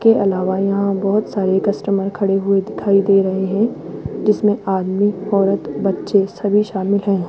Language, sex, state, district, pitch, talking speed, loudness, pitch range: Hindi, female, Rajasthan, Jaipur, 200 Hz, 155 wpm, -17 LUFS, 195-205 Hz